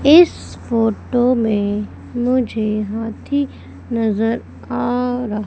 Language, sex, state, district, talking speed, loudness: Hindi, female, Madhya Pradesh, Umaria, 90 wpm, -19 LUFS